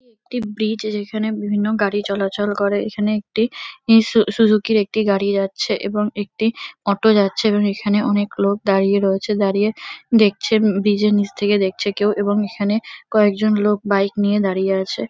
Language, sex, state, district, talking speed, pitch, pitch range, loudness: Bengali, female, West Bengal, Kolkata, 165 wpm, 205 Hz, 200-215 Hz, -18 LUFS